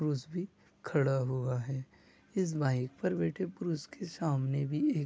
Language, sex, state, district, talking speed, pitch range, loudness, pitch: Hindi, male, Maharashtra, Aurangabad, 180 wpm, 130-160 Hz, -34 LUFS, 145 Hz